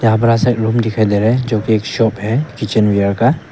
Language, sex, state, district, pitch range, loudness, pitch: Hindi, male, Arunachal Pradesh, Papum Pare, 110-120 Hz, -15 LUFS, 110 Hz